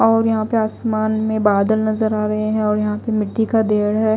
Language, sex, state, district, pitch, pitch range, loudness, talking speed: Hindi, female, Chhattisgarh, Raipur, 215 Hz, 210-220 Hz, -18 LUFS, 245 wpm